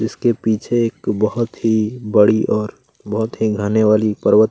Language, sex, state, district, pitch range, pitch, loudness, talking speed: Hindi, male, Chhattisgarh, Kabirdham, 105-115 Hz, 110 Hz, -17 LUFS, 160 wpm